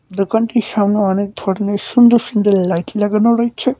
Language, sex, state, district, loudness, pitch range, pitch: Bengali, male, West Bengal, Cooch Behar, -15 LUFS, 200-235 Hz, 210 Hz